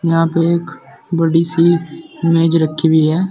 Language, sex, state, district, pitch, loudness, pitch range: Hindi, male, Uttar Pradesh, Saharanpur, 165 Hz, -15 LUFS, 165-170 Hz